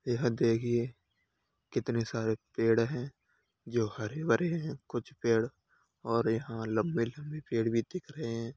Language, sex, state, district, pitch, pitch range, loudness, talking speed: Hindi, male, Uttar Pradesh, Hamirpur, 115 Hz, 115-130 Hz, -32 LUFS, 145 wpm